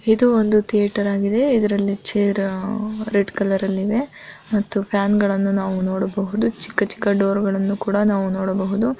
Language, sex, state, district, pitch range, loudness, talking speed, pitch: Kannada, female, Karnataka, Mysore, 195-215 Hz, -20 LUFS, 140 wpm, 200 Hz